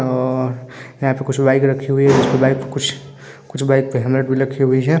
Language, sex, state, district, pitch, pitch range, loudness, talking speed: Hindi, male, Bihar, Vaishali, 135 Hz, 130-135 Hz, -17 LUFS, 240 wpm